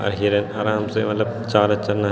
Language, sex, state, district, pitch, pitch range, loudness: Garhwali, male, Uttarakhand, Tehri Garhwal, 105 Hz, 105-110 Hz, -21 LUFS